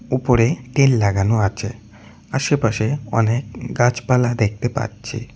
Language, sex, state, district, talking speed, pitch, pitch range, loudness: Bengali, male, West Bengal, Cooch Behar, 100 wpm, 115 Hz, 110-125 Hz, -19 LUFS